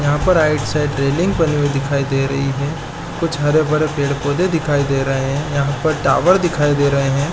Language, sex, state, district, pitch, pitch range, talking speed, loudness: Hindi, male, Chhattisgarh, Balrampur, 145 Hz, 140-155 Hz, 230 wpm, -17 LUFS